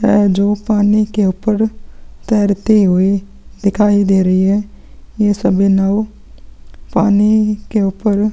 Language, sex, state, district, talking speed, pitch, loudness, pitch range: Hindi, male, Chhattisgarh, Kabirdham, 120 wpm, 205 Hz, -14 LUFS, 195-210 Hz